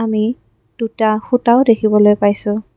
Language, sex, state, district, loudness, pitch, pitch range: Assamese, female, Assam, Kamrup Metropolitan, -14 LUFS, 220 Hz, 210-235 Hz